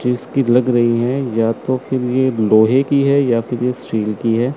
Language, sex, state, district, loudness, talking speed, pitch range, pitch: Hindi, male, Chandigarh, Chandigarh, -16 LUFS, 235 wpm, 115-130 Hz, 125 Hz